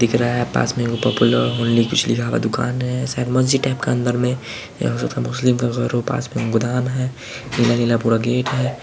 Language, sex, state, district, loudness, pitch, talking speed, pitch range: Hindi, male, Bihar, Araria, -19 LUFS, 120 Hz, 185 wpm, 115-125 Hz